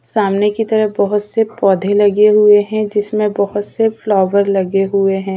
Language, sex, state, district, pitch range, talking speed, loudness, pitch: Hindi, female, Chhattisgarh, Raipur, 200-215 Hz, 180 wpm, -14 LUFS, 205 Hz